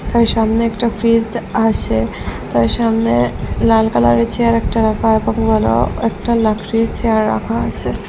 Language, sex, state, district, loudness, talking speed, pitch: Bengali, female, Assam, Hailakandi, -15 LUFS, 135 wpm, 220 Hz